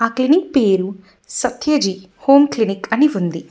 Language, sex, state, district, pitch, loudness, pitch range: Telugu, female, Telangana, Mahabubabad, 220 Hz, -16 LUFS, 195-285 Hz